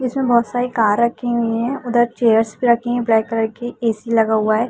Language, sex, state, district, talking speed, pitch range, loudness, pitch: Hindi, female, Uttar Pradesh, Budaun, 270 wpm, 225-240 Hz, -18 LUFS, 235 Hz